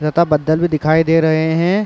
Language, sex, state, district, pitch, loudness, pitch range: Hindi, male, Uttar Pradesh, Varanasi, 160 Hz, -15 LUFS, 155-170 Hz